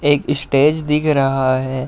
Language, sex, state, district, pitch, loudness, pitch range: Hindi, male, Uttar Pradesh, Budaun, 140 Hz, -16 LUFS, 130-150 Hz